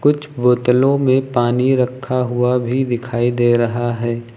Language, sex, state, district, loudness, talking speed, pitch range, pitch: Hindi, male, Uttar Pradesh, Lucknow, -17 LUFS, 150 wpm, 120-130 Hz, 125 Hz